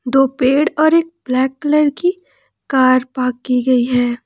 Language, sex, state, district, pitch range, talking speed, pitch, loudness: Hindi, female, Jharkhand, Ranchi, 255-300 Hz, 170 wpm, 260 Hz, -15 LUFS